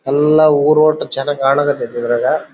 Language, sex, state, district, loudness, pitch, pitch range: Kannada, male, Karnataka, Bellary, -14 LUFS, 145 Hz, 135-155 Hz